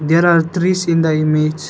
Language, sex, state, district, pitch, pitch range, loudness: English, male, Arunachal Pradesh, Lower Dibang Valley, 165 Hz, 155-175 Hz, -15 LUFS